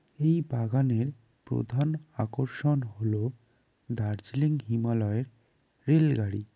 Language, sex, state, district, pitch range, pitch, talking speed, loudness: Bengali, male, West Bengal, Jalpaiguri, 115-140 Hz, 125 Hz, 75 wpm, -29 LUFS